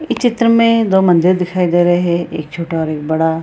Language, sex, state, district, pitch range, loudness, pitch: Hindi, female, Bihar, Purnia, 165-215 Hz, -14 LUFS, 175 Hz